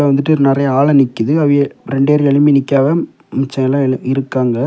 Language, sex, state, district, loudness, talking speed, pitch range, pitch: Tamil, male, Tamil Nadu, Kanyakumari, -13 LUFS, 165 wpm, 135-145 Hz, 140 Hz